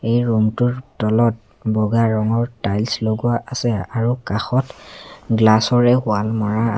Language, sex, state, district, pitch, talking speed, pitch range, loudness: Assamese, male, Assam, Sonitpur, 115 Hz, 140 wpm, 110-120 Hz, -19 LUFS